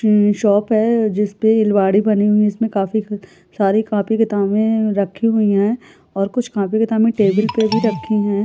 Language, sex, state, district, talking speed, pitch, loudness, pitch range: Hindi, female, Uttar Pradesh, Etah, 190 wpm, 210 Hz, -16 LUFS, 205-220 Hz